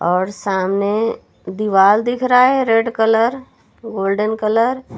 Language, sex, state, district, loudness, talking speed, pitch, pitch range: Hindi, female, Uttar Pradesh, Lucknow, -16 LUFS, 130 wpm, 220 Hz, 200-235 Hz